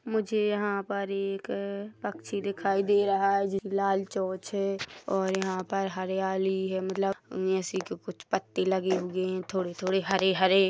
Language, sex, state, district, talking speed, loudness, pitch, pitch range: Hindi, female, Chhattisgarh, Rajnandgaon, 165 wpm, -29 LUFS, 195 Hz, 190-200 Hz